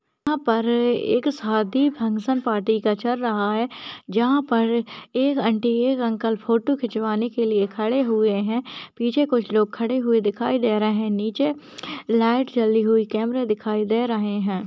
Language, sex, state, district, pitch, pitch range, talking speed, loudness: Hindi, female, Chhattisgarh, Kabirdham, 230 Hz, 220-250 Hz, 170 wpm, -22 LUFS